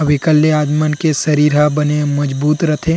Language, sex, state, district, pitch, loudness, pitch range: Chhattisgarhi, male, Chhattisgarh, Rajnandgaon, 150 Hz, -14 LUFS, 150-155 Hz